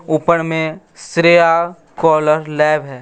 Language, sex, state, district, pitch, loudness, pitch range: Hindi, female, Bihar, West Champaran, 160 Hz, -14 LUFS, 155-170 Hz